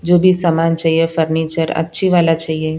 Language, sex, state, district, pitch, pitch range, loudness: Hindi, female, Punjab, Pathankot, 165 Hz, 160-170 Hz, -15 LUFS